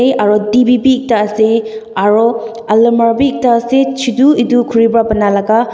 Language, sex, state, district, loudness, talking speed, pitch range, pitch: Nagamese, female, Nagaland, Dimapur, -11 LUFS, 145 wpm, 220-245 Hz, 230 Hz